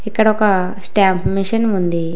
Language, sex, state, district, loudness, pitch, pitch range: Telugu, female, Telangana, Hyderabad, -16 LUFS, 195 Hz, 185-215 Hz